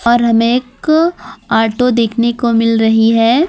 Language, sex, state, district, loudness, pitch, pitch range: Hindi, female, Gujarat, Valsad, -12 LUFS, 235 Hz, 225-250 Hz